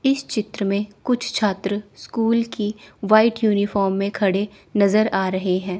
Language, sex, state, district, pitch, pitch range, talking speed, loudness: Hindi, female, Chandigarh, Chandigarh, 205 Hz, 200-220 Hz, 155 wpm, -21 LUFS